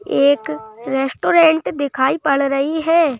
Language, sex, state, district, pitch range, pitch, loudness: Hindi, female, Madhya Pradesh, Bhopal, 265-320 Hz, 280 Hz, -16 LUFS